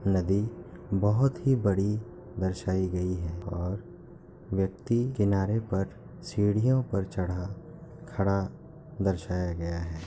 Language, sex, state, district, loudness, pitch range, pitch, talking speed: Hindi, male, Bihar, Kishanganj, -29 LUFS, 90-110 Hz, 95 Hz, 105 wpm